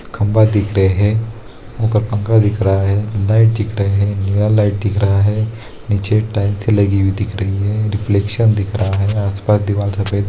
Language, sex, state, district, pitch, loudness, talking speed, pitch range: Hindi, male, Bihar, Saharsa, 105 Hz, -16 LUFS, 190 wpm, 100-110 Hz